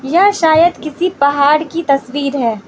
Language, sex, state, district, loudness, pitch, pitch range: Hindi, female, Manipur, Imphal West, -13 LUFS, 300 Hz, 280-335 Hz